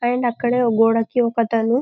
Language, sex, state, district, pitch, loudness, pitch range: Telugu, female, Telangana, Karimnagar, 240 Hz, -18 LUFS, 230-245 Hz